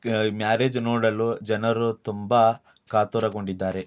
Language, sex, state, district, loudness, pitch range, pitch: Kannada, male, Karnataka, Dharwad, -24 LUFS, 105-115 Hz, 110 Hz